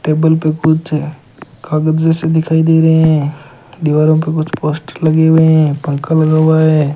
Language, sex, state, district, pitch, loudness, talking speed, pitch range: Hindi, male, Rajasthan, Bikaner, 155 Hz, -12 LUFS, 170 wpm, 150-160 Hz